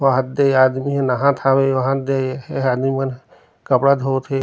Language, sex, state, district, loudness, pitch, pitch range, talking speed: Chhattisgarhi, male, Chhattisgarh, Rajnandgaon, -18 LUFS, 135 Hz, 130-135 Hz, 190 wpm